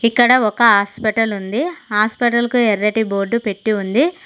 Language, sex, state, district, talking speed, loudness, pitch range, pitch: Telugu, female, Telangana, Mahabubabad, 125 wpm, -16 LUFS, 210-240 Hz, 225 Hz